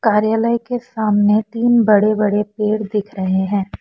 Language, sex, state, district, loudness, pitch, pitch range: Hindi, female, Assam, Kamrup Metropolitan, -17 LUFS, 215 Hz, 205-225 Hz